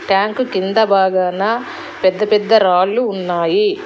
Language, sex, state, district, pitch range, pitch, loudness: Telugu, female, Telangana, Hyderabad, 185-220 Hz, 200 Hz, -15 LUFS